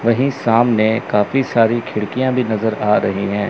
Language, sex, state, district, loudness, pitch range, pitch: Hindi, male, Chandigarh, Chandigarh, -17 LUFS, 105-120 Hz, 115 Hz